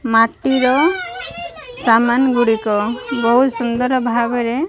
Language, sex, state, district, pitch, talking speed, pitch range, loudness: Odia, female, Odisha, Malkangiri, 245 Hz, 75 wpm, 235-265 Hz, -16 LUFS